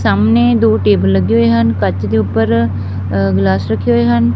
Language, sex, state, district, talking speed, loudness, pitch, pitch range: Punjabi, female, Punjab, Fazilka, 180 wpm, -13 LUFS, 110 Hz, 95-115 Hz